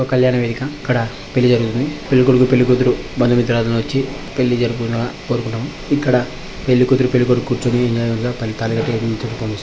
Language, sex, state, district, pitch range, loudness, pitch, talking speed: Telugu, male, Andhra Pradesh, Chittoor, 115-130 Hz, -17 LUFS, 125 Hz, 170 wpm